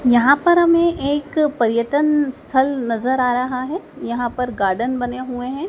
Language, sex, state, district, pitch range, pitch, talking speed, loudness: Hindi, female, Madhya Pradesh, Dhar, 245-295 Hz, 260 Hz, 170 wpm, -18 LUFS